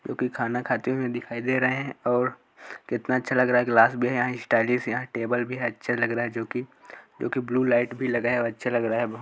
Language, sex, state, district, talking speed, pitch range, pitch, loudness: Hindi, male, Chhattisgarh, Korba, 275 wpm, 120-125 Hz, 125 Hz, -25 LUFS